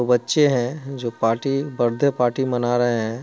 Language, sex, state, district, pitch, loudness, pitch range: Hindi, male, Bihar, Muzaffarpur, 125 Hz, -21 LUFS, 120-135 Hz